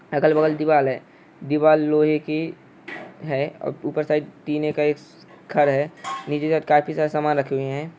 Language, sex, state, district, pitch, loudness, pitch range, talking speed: Hindi, male, West Bengal, Jhargram, 150 Hz, -22 LUFS, 150-155 Hz, 180 wpm